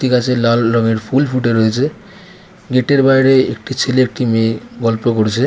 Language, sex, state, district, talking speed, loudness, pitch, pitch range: Bengali, female, West Bengal, North 24 Parganas, 175 wpm, -14 LUFS, 125 Hz, 115-135 Hz